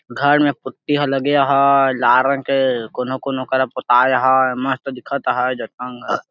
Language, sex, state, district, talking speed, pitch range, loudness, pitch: Sadri, male, Chhattisgarh, Jashpur, 145 wpm, 125-140 Hz, -17 LUFS, 130 Hz